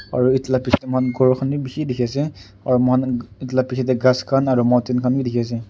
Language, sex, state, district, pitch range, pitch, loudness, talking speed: Nagamese, male, Nagaland, Kohima, 125-130 Hz, 130 Hz, -19 LUFS, 295 wpm